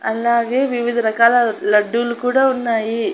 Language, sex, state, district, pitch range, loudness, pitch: Telugu, female, Andhra Pradesh, Annamaya, 225-245 Hz, -17 LUFS, 235 Hz